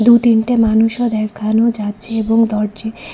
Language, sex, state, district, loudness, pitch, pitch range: Bengali, female, Tripura, West Tripura, -15 LUFS, 225 Hz, 215-230 Hz